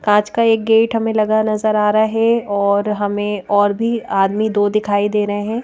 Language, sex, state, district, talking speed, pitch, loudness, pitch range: Hindi, female, Madhya Pradesh, Bhopal, 215 wpm, 210 Hz, -16 LUFS, 205-225 Hz